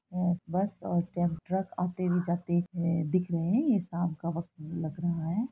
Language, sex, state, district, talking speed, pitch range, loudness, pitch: Hindi, female, Bihar, Araria, 185 wpm, 170-180 Hz, -31 LUFS, 175 Hz